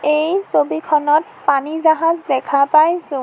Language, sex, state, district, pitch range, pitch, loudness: Assamese, female, Assam, Sonitpur, 285-325 Hz, 305 Hz, -16 LUFS